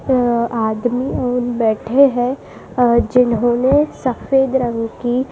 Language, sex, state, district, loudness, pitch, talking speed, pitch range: Hindi, female, Madhya Pradesh, Dhar, -16 LUFS, 245 Hz, 115 wpm, 235-260 Hz